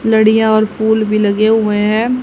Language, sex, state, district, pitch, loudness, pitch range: Hindi, female, Haryana, Jhajjar, 220 Hz, -12 LUFS, 215-220 Hz